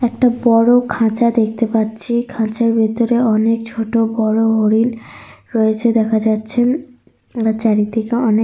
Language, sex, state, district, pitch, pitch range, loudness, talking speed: Bengali, female, Jharkhand, Sahebganj, 225 Hz, 220-235 Hz, -16 LUFS, 120 wpm